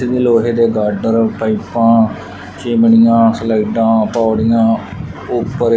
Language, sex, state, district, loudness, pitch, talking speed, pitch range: Punjabi, male, Punjab, Fazilka, -13 LUFS, 115 Hz, 95 wpm, 110-115 Hz